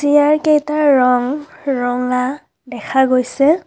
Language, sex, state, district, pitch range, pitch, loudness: Assamese, female, Assam, Kamrup Metropolitan, 250-300 Hz, 275 Hz, -15 LUFS